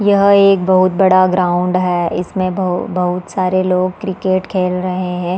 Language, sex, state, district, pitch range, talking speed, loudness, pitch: Hindi, female, Chhattisgarh, Balrampur, 180-185 Hz, 165 wpm, -14 LUFS, 185 Hz